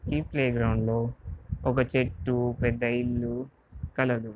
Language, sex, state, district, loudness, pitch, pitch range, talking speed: Telugu, male, Andhra Pradesh, Visakhapatnam, -28 LUFS, 120 Hz, 115-130 Hz, 125 wpm